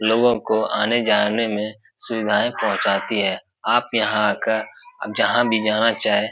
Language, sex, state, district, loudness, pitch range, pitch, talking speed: Hindi, male, Bihar, Supaul, -20 LUFS, 105-120 Hz, 110 Hz, 140 wpm